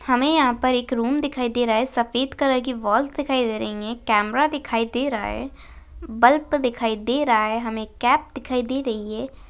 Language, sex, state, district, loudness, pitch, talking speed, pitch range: Hindi, female, Bihar, Jahanabad, -22 LUFS, 245 Hz, 210 wpm, 230-270 Hz